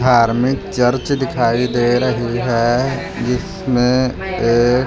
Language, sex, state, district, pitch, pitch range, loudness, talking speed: Hindi, male, Punjab, Fazilka, 125 Hz, 120-130 Hz, -17 LUFS, 100 wpm